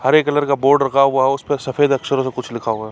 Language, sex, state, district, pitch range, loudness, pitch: Hindi, male, Uttar Pradesh, Varanasi, 130-145 Hz, -17 LUFS, 135 Hz